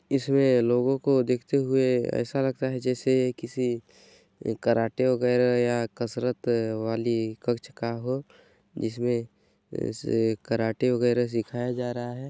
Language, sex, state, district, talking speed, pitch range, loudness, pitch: Hindi, male, Chhattisgarh, Bilaspur, 120 wpm, 115-130 Hz, -26 LUFS, 120 Hz